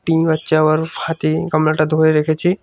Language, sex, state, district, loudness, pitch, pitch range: Bengali, male, West Bengal, Cooch Behar, -16 LUFS, 155 Hz, 155-160 Hz